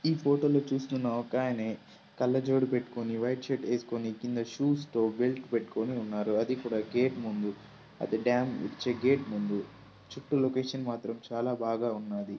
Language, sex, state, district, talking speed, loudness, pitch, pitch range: Telugu, male, Telangana, Karimnagar, 140 wpm, -31 LUFS, 120 Hz, 115-130 Hz